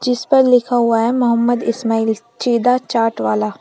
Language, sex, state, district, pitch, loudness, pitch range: Hindi, female, Uttar Pradesh, Shamli, 235 Hz, -16 LUFS, 225-245 Hz